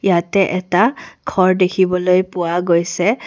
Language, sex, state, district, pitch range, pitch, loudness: Assamese, female, Assam, Kamrup Metropolitan, 175-195 Hz, 185 Hz, -16 LUFS